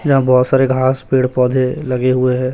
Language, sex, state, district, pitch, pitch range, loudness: Hindi, male, Chhattisgarh, Raipur, 130 Hz, 125-130 Hz, -14 LUFS